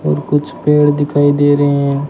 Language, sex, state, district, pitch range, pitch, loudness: Hindi, male, Rajasthan, Bikaner, 140-145 Hz, 145 Hz, -13 LUFS